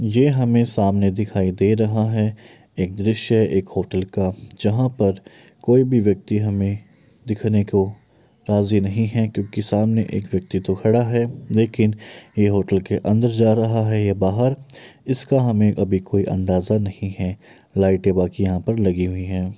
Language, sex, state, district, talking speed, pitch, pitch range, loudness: Maithili, male, Bihar, Muzaffarpur, 160 wpm, 105 Hz, 95-115 Hz, -20 LUFS